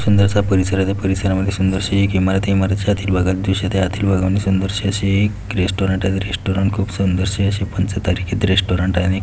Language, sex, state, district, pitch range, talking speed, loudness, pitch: Marathi, male, Maharashtra, Solapur, 95-100 Hz, 170 wpm, -18 LUFS, 95 Hz